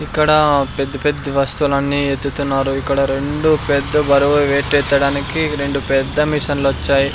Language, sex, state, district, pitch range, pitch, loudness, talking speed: Telugu, male, Andhra Pradesh, Sri Satya Sai, 140-145 Hz, 140 Hz, -16 LUFS, 125 wpm